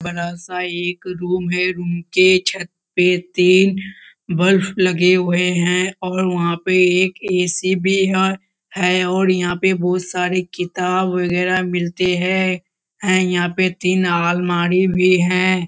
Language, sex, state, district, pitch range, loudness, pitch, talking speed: Hindi, male, Bihar, Kishanganj, 180-185 Hz, -17 LUFS, 180 Hz, 140 wpm